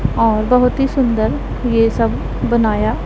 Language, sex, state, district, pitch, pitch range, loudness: Hindi, female, Punjab, Pathankot, 230 Hz, 220-250 Hz, -16 LUFS